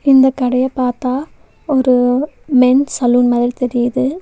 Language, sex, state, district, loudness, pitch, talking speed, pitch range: Tamil, female, Tamil Nadu, Nilgiris, -14 LUFS, 255 Hz, 115 wpm, 245-270 Hz